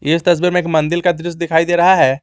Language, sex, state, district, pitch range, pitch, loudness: Hindi, male, Jharkhand, Garhwa, 160-175 Hz, 170 Hz, -14 LUFS